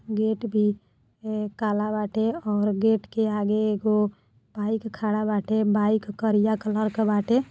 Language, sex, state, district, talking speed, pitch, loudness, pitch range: Bhojpuri, female, Uttar Pradesh, Deoria, 145 wpm, 215 Hz, -25 LUFS, 210-220 Hz